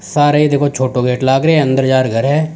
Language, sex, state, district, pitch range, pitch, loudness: Rajasthani, male, Rajasthan, Nagaur, 130-145 Hz, 135 Hz, -13 LUFS